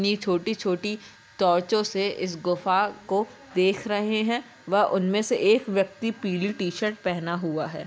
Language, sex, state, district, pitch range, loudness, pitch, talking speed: Hindi, female, Chhattisgarh, Bilaspur, 180-215 Hz, -25 LUFS, 200 Hz, 160 wpm